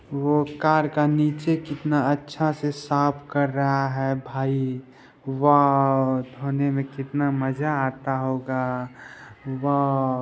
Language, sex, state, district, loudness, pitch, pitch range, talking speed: Hindi, male, Bihar, Purnia, -23 LUFS, 140 Hz, 135-145 Hz, 115 wpm